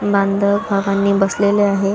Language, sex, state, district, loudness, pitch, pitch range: Marathi, female, Maharashtra, Chandrapur, -16 LUFS, 200 Hz, 195-205 Hz